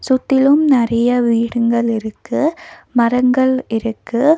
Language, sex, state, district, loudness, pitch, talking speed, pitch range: Tamil, female, Tamil Nadu, Nilgiris, -16 LUFS, 245 Hz, 80 wpm, 235-265 Hz